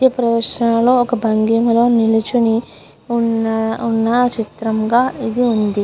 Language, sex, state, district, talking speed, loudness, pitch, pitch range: Telugu, female, Andhra Pradesh, Guntur, 115 wpm, -16 LUFS, 230 Hz, 225-240 Hz